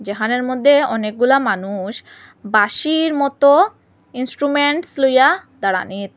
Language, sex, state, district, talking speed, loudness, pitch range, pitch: Bengali, female, Assam, Hailakandi, 85 wpm, -16 LUFS, 210-285 Hz, 255 Hz